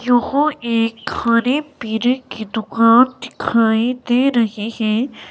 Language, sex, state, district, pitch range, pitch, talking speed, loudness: Hindi, female, Himachal Pradesh, Shimla, 225-255 Hz, 235 Hz, 115 wpm, -17 LUFS